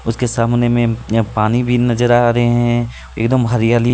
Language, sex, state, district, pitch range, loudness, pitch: Hindi, male, Jharkhand, Deoghar, 115-120 Hz, -15 LUFS, 120 Hz